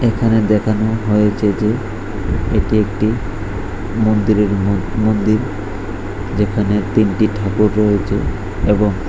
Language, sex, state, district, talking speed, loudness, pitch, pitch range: Bengali, male, Tripura, West Tripura, 85 wpm, -17 LUFS, 105 Hz, 100-110 Hz